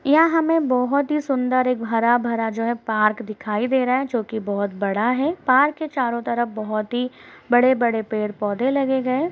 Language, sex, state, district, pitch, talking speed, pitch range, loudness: Hindi, female, Uttar Pradesh, Deoria, 245 Hz, 200 wpm, 220-265 Hz, -21 LUFS